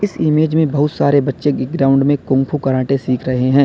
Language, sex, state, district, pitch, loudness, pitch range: Hindi, male, Uttar Pradesh, Lalitpur, 140 Hz, -15 LUFS, 135-150 Hz